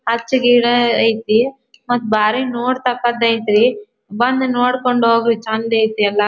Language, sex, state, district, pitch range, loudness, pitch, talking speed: Kannada, female, Karnataka, Dharwad, 225-250 Hz, -15 LUFS, 235 Hz, 135 wpm